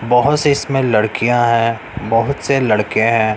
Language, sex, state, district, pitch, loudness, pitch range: Hindi, male, Bihar, West Champaran, 120 Hz, -15 LUFS, 110-135 Hz